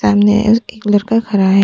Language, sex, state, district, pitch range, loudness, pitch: Hindi, female, Arunachal Pradesh, Papum Pare, 200-225 Hz, -13 LUFS, 205 Hz